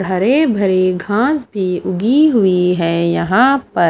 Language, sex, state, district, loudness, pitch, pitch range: Hindi, female, Himachal Pradesh, Shimla, -14 LUFS, 190 Hz, 180-250 Hz